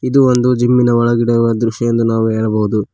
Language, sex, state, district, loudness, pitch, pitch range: Kannada, male, Karnataka, Koppal, -14 LUFS, 120 Hz, 115-125 Hz